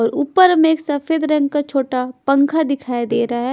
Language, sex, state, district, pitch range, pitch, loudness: Hindi, female, Punjab, Pathankot, 255-310 Hz, 280 Hz, -17 LUFS